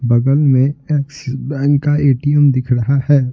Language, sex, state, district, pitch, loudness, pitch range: Hindi, male, Bihar, Patna, 140 Hz, -15 LUFS, 130-145 Hz